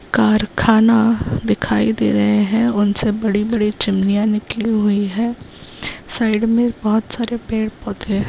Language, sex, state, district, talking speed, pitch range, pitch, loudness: Hindi, female, Uttar Pradesh, Hamirpur, 145 wpm, 200-225 Hz, 215 Hz, -17 LUFS